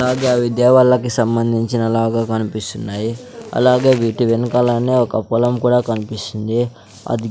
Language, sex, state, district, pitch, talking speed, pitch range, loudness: Telugu, male, Andhra Pradesh, Sri Satya Sai, 115 Hz, 115 wpm, 115-125 Hz, -16 LUFS